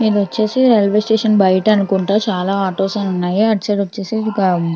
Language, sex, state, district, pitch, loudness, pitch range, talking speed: Telugu, female, Andhra Pradesh, Krishna, 205 Hz, -15 LUFS, 195-215 Hz, 200 wpm